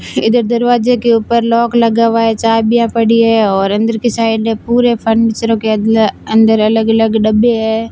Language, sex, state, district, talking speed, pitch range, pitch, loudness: Hindi, female, Rajasthan, Barmer, 175 wpm, 220-230 Hz, 225 Hz, -12 LUFS